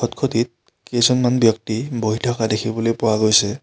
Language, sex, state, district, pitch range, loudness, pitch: Assamese, male, Assam, Kamrup Metropolitan, 110-120 Hz, -19 LUFS, 115 Hz